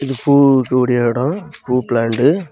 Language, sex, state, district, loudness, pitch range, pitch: Tamil, male, Tamil Nadu, Kanyakumari, -15 LUFS, 125-140 Hz, 130 Hz